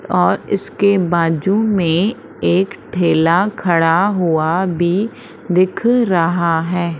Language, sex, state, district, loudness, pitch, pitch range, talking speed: Hindi, female, Madhya Pradesh, Umaria, -16 LUFS, 175 Hz, 165-195 Hz, 105 wpm